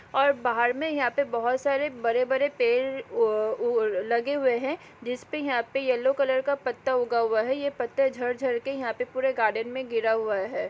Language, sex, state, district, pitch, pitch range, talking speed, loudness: Hindi, female, Uttarakhand, Tehri Garhwal, 260 Hz, 235-280 Hz, 195 wpm, -26 LUFS